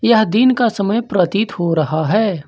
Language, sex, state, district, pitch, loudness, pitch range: Hindi, male, Jharkhand, Ranchi, 205 Hz, -16 LUFS, 175-225 Hz